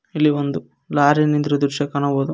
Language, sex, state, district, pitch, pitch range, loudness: Kannada, male, Karnataka, Koppal, 145 Hz, 140-150 Hz, -19 LUFS